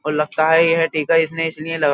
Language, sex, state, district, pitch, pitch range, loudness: Hindi, male, Uttar Pradesh, Jyotiba Phule Nagar, 160 Hz, 155-165 Hz, -17 LUFS